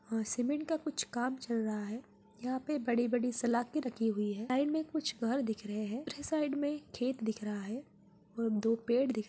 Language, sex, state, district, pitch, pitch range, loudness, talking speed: Hindi, female, Bihar, Jamui, 240 Hz, 220-275 Hz, -35 LUFS, 225 wpm